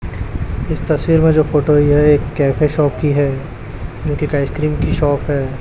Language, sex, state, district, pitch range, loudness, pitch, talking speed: Hindi, male, Chhattisgarh, Raipur, 135-150 Hz, -16 LUFS, 145 Hz, 205 wpm